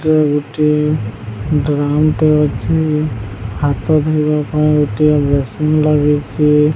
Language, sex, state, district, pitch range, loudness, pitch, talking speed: Odia, male, Odisha, Sambalpur, 145-150 Hz, -14 LUFS, 150 Hz, 90 wpm